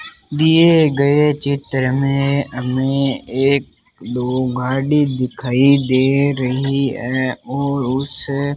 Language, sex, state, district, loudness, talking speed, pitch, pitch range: Hindi, male, Rajasthan, Bikaner, -17 LUFS, 105 wpm, 135 Hz, 130-140 Hz